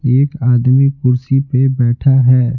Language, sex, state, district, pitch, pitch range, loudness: Hindi, male, Bihar, Patna, 130 Hz, 125-135 Hz, -13 LUFS